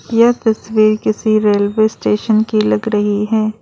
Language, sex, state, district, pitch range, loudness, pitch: Hindi, female, Arunachal Pradesh, Lower Dibang Valley, 210-220 Hz, -14 LUFS, 215 Hz